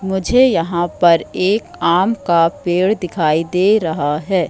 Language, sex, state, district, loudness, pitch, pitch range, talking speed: Hindi, female, Madhya Pradesh, Katni, -15 LUFS, 180 Hz, 165-190 Hz, 145 wpm